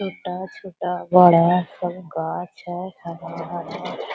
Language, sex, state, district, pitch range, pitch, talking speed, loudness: Hindi, female, Jharkhand, Sahebganj, 175-185 Hz, 180 Hz, 85 wpm, -21 LUFS